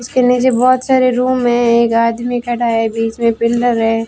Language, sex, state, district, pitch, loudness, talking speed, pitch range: Hindi, female, Rajasthan, Bikaner, 240 Hz, -14 LUFS, 205 wpm, 230-250 Hz